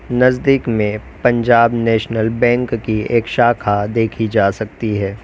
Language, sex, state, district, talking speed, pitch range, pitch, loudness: Hindi, male, Uttar Pradesh, Lalitpur, 135 wpm, 110-120 Hz, 115 Hz, -16 LUFS